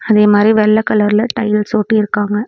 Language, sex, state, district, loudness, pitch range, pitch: Tamil, female, Tamil Nadu, Namakkal, -13 LUFS, 210-220 Hz, 215 Hz